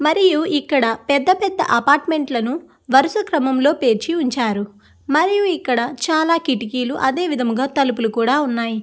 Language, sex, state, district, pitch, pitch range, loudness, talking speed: Telugu, female, Andhra Pradesh, Guntur, 275 Hz, 240-320 Hz, -18 LUFS, 135 wpm